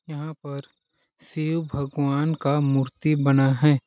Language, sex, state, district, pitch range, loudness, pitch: Hindi, male, Chhattisgarh, Balrampur, 140-155 Hz, -23 LUFS, 145 Hz